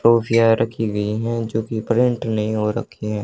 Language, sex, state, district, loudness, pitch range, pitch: Hindi, male, Haryana, Charkhi Dadri, -20 LUFS, 105-115 Hz, 110 Hz